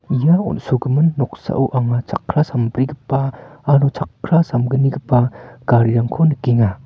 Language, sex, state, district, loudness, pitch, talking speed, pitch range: Garo, male, Meghalaya, North Garo Hills, -17 LUFS, 135 Hz, 95 wpm, 120-150 Hz